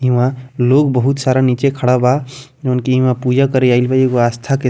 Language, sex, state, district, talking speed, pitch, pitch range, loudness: Bhojpuri, male, Bihar, Muzaffarpur, 215 wpm, 130 Hz, 125-135 Hz, -14 LUFS